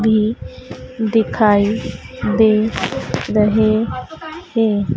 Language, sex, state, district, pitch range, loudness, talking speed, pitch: Hindi, female, Madhya Pradesh, Dhar, 205-225 Hz, -17 LUFS, 60 wpm, 215 Hz